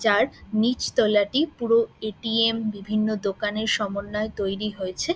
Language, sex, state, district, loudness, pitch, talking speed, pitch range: Bengali, female, West Bengal, Dakshin Dinajpur, -24 LUFS, 215 Hz, 140 wpm, 205-225 Hz